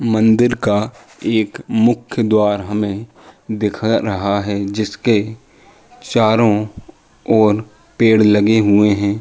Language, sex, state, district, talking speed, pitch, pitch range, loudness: Hindi, male, Uttar Pradesh, Jalaun, 105 wpm, 110 Hz, 105-110 Hz, -16 LUFS